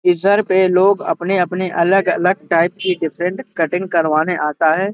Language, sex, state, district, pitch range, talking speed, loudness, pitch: Hindi, male, Uttar Pradesh, Hamirpur, 165-190 Hz, 135 wpm, -16 LUFS, 180 Hz